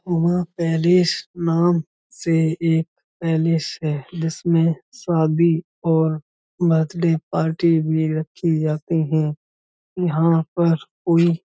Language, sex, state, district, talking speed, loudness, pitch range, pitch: Hindi, male, Uttar Pradesh, Budaun, 105 wpm, -20 LUFS, 160-170 Hz, 165 Hz